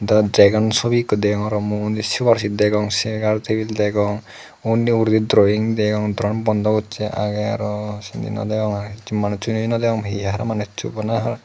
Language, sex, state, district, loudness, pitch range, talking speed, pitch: Chakma, male, Tripura, Unakoti, -19 LUFS, 105-110 Hz, 175 wpm, 105 Hz